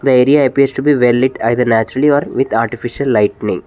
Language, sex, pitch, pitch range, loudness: English, male, 130 Hz, 120-140 Hz, -13 LUFS